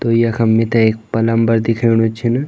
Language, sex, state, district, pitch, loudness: Garhwali, male, Uttarakhand, Tehri Garhwal, 115 Hz, -15 LUFS